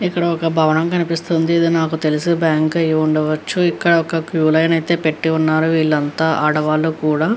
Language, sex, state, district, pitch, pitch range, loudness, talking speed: Telugu, female, Andhra Pradesh, Krishna, 160 Hz, 155-165 Hz, -16 LUFS, 165 wpm